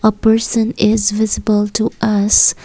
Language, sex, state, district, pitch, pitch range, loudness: English, female, Assam, Kamrup Metropolitan, 215 Hz, 210-225 Hz, -14 LUFS